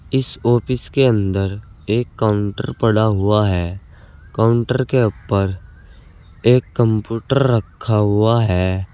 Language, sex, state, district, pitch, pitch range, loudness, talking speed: Hindi, male, Uttar Pradesh, Saharanpur, 105 Hz, 95-120 Hz, -18 LUFS, 115 wpm